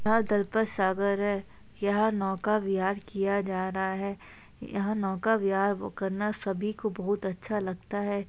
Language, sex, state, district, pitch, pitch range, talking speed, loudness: Hindi, female, Chhattisgarh, Bastar, 200 Hz, 195-210 Hz, 145 wpm, -29 LUFS